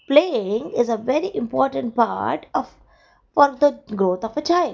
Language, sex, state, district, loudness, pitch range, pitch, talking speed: English, female, Gujarat, Valsad, -21 LUFS, 215-295 Hz, 240 Hz, 165 wpm